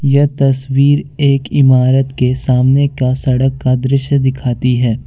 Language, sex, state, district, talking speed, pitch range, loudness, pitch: Hindi, male, Jharkhand, Ranchi, 140 wpm, 130-140 Hz, -13 LUFS, 135 Hz